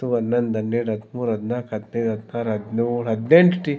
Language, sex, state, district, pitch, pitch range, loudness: Kannada, male, Karnataka, Raichur, 115 Hz, 110-120 Hz, -22 LUFS